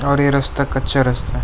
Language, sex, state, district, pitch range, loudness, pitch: Hindi, male, West Bengal, Alipurduar, 125-140 Hz, -15 LUFS, 135 Hz